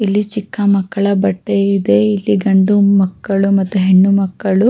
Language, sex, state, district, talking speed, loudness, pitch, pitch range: Kannada, female, Karnataka, Mysore, 155 wpm, -14 LUFS, 195 Hz, 190-205 Hz